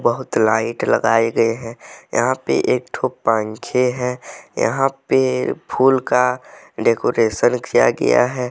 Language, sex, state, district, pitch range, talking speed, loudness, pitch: Hindi, male, Jharkhand, Deoghar, 115-125 Hz, 135 wpm, -18 LUFS, 120 Hz